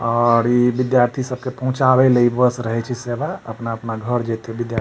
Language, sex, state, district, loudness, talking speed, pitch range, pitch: Maithili, male, Bihar, Supaul, -19 LUFS, 200 wpm, 115-125 Hz, 120 Hz